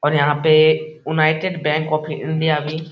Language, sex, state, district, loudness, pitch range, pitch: Hindi, male, Bihar, Lakhisarai, -18 LUFS, 150-160 Hz, 155 Hz